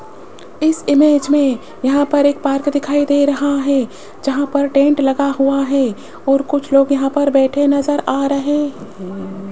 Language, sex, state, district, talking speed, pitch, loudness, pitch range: Hindi, female, Rajasthan, Jaipur, 170 wpm, 280 Hz, -15 LUFS, 275-285 Hz